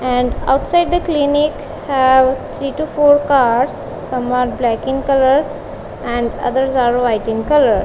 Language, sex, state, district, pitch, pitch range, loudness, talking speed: English, female, Punjab, Kapurthala, 265 Hz, 250-290 Hz, -15 LUFS, 155 wpm